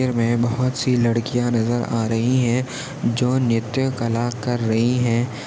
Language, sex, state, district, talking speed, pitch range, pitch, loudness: Hindi, male, Maharashtra, Nagpur, 155 wpm, 115-125 Hz, 120 Hz, -21 LUFS